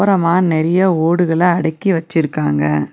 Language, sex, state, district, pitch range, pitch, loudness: Tamil, female, Tamil Nadu, Nilgiris, 160-180 Hz, 165 Hz, -15 LUFS